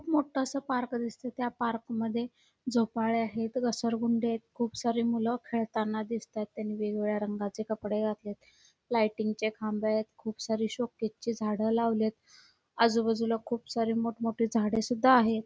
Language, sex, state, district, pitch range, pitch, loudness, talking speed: Marathi, female, Karnataka, Belgaum, 220-235 Hz, 230 Hz, -31 LUFS, 150 wpm